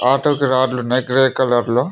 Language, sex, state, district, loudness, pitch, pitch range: Telugu, male, Telangana, Mahabubabad, -16 LUFS, 130 Hz, 125-135 Hz